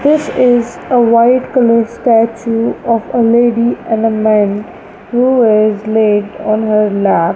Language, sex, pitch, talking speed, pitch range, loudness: English, female, 230 Hz, 145 wpm, 215-240 Hz, -12 LUFS